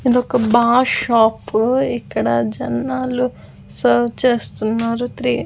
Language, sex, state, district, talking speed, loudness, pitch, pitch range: Telugu, female, Andhra Pradesh, Sri Satya Sai, 110 wpm, -17 LUFS, 240 Hz, 220-250 Hz